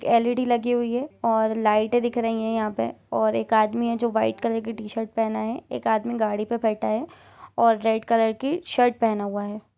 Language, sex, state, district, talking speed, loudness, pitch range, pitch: Hindi, female, Jharkhand, Jamtara, 210 wpm, -24 LUFS, 220-235 Hz, 225 Hz